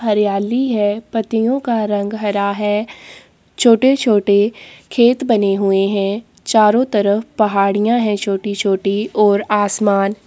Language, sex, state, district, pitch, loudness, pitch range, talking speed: Hindi, female, Uttar Pradesh, Jyotiba Phule Nagar, 210 Hz, -16 LUFS, 200-225 Hz, 115 wpm